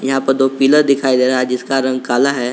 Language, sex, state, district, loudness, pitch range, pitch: Hindi, male, Jharkhand, Garhwa, -14 LUFS, 125-135 Hz, 135 Hz